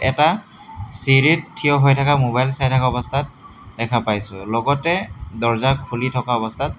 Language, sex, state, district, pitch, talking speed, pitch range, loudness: Assamese, male, Assam, Hailakandi, 130 Hz, 140 wpm, 115-140 Hz, -18 LUFS